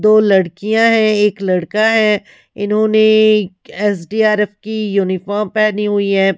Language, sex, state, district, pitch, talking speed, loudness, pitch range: Hindi, female, Haryana, Rohtak, 210 Hz, 120 wpm, -14 LUFS, 200-215 Hz